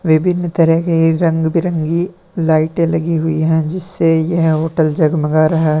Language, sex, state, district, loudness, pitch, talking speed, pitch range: Hindi, male, Uttar Pradesh, Lalitpur, -14 LUFS, 165 Hz, 155 wpm, 160-170 Hz